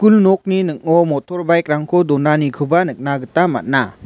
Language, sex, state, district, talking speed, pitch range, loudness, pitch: Garo, male, Meghalaya, West Garo Hills, 120 wpm, 145-175 Hz, -16 LUFS, 160 Hz